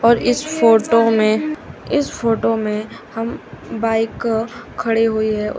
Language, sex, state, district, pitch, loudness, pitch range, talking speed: Hindi, female, Uttar Pradesh, Shamli, 225 Hz, -18 LUFS, 220-235 Hz, 140 wpm